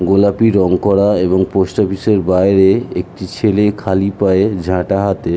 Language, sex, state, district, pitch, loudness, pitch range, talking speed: Bengali, male, West Bengal, North 24 Parganas, 95 Hz, -14 LUFS, 95-100 Hz, 155 wpm